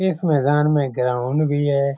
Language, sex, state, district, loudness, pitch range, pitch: Hindi, male, Bihar, Lakhisarai, -19 LUFS, 140-150 Hz, 145 Hz